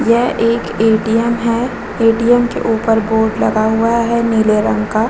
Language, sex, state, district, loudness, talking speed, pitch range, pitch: Hindi, female, Bihar, Vaishali, -14 LUFS, 165 wpm, 220-235 Hz, 225 Hz